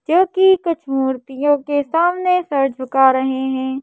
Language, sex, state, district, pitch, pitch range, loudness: Hindi, female, Madhya Pradesh, Bhopal, 285 Hz, 265-345 Hz, -17 LUFS